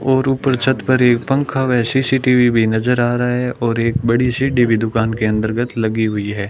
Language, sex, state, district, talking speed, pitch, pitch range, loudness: Hindi, male, Rajasthan, Bikaner, 220 wpm, 120 Hz, 115-130 Hz, -16 LUFS